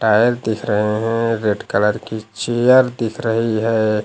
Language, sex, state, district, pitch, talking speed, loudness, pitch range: Hindi, male, Uttar Pradesh, Lucknow, 110 Hz, 165 wpm, -17 LUFS, 105-115 Hz